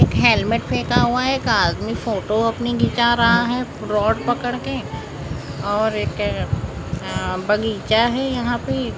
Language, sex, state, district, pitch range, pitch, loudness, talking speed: Hindi, male, Maharashtra, Mumbai Suburban, 220-245 Hz, 235 Hz, -20 LUFS, 145 wpm